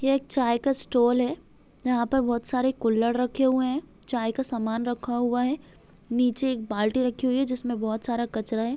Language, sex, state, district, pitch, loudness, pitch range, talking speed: Hindi, female, Chhattisgarh, Bilaspur, 245 Hz, -26 LUFS, 235-260 Hz, 210 wpm